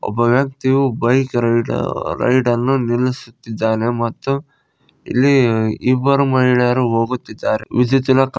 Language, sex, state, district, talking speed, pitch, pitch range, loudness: Kannada, male, Karnataka, Koppal, 100 wpm, 125 Hz, 120-135 Hz, -17 LUFS